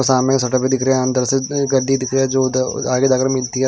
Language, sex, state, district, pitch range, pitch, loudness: Hindi, male, Himachal Pradesh, Shimla, 130-135 Hz, 130 Hz, -17 LUFS